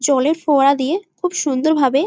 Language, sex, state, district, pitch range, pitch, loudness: Bengali, female, West Bengal, Jalpaiguri, 275-325 Hz, 290 Hz, -17 LUFS